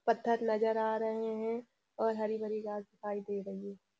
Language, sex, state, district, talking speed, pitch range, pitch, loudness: Hindi, female, Uttarakhand, Uttarkashi, 195 wpm, 205-225 Hz, 220 Hz, -35 LUFS